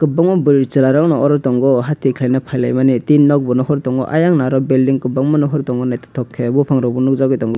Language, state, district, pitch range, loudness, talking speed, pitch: Kokborok, Tripura, West Tripura, 125-145 Hz, -14 LUFS, 220 wpm, 135 Hz